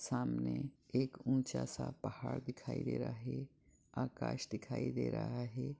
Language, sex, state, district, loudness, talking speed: Hindi, male, Chhattisgarh, Raigarh, -41 LUFS, 155 wpm